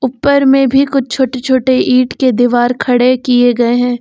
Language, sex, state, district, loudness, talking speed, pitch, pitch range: Hindi, female, Uttar Pradesh, Lucknow, -11 LUFS, 195 wpm, 255 Hz, 245-265 Hz